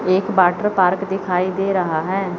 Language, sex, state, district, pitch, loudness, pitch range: Hindi, female, Chandigarh, Chandigarh, 185 Hz, -18 LUFS, 180-195 Hz